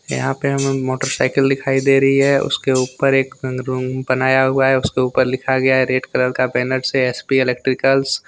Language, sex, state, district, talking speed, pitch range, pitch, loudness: Hindi, male, Jharkhand, Deoghar, 210 wpm, 130-135 Hz, 130 Hz, -17 LUFS